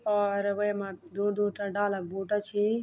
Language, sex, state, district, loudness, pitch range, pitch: Garhwali, female, Uttarakhand, Tehri Garhwal, -30 LUFS, 200-205 Hz, 205 Hz